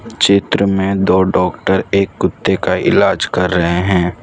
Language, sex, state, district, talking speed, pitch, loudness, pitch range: Hindi, male, Gujarat, Valsad, 155 wpm, 95 Hz, -14 LUFS, 90-100 Hz